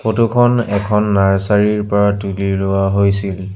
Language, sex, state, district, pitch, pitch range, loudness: Assamese, male, Assam, Sonitpur, 100 Hz, 95-105 Hz, -15 LUFS